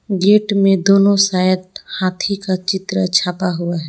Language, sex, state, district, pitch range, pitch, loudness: Hindi, female, Jharkhand, Palamu, 185-195 Hz, 190 Hz, -15 LUFS